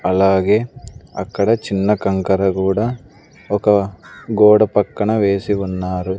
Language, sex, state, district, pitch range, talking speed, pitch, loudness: Telugu, male, Andhra Pradesh, Sri Satya Sai, 95-105 Hz, 95 wpm, 100 Hz, -17 LUFS